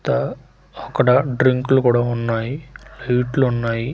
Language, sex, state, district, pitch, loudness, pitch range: Telugu, male, Andhra Pradesh, Manyam, 125 Hz, -19 LUFS, 120-130 Hz